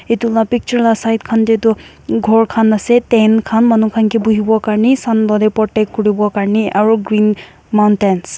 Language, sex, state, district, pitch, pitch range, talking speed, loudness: Nagamese, female, Nagaland, Kohima, 220 Hz, 215-225 Hz, 185 wpm, -13 LUFS